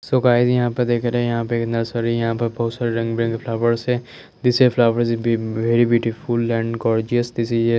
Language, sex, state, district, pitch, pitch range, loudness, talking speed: Hindi, male, Chandigarh, Chandigarh, 115 Hz, 115-120 Hz, -20 LUFS, 200 wpm